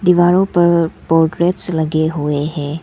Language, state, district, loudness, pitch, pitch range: Hindi, Arunachal Pradesh, Lower Dibang Valley, -15 LUFS, 165 Hz, 155-175 Hz